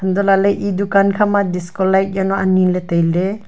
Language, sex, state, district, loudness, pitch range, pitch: Wancho, female, Arunachal Pradesh, Longding, -16 LUFS, 185-200 Hz, 195 Hz